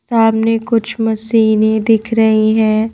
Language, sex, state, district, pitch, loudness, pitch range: Hindi, female, Madhya Pradesh, Bhopal, 220 Hz, -13 LUFS, 220-225 Hz